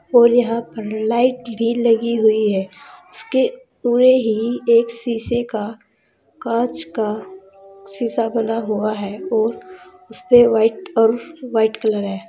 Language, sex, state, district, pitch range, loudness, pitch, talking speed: Hindi, female, Uttar Pradesh, Saharanpur, 215-240 Hz, -18 LUFS, 230 Hz, 130 wpm